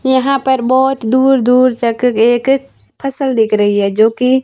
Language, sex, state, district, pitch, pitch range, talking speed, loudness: Hindi, female, Rajasthan, Barmer, 255 Hz, 230-265 Hz, 175 wpm, -12 LUFS